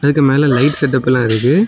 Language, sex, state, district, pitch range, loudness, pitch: Tamil, male, Tamil Nadu, Kanyakumari, 125-145 Hz, -13 LUFS, 140 Hz